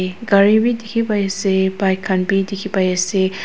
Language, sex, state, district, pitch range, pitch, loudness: Nagamese, female, Nagaland, Dimapur, 190-205 Hz, 195 Hz, -17 LUFS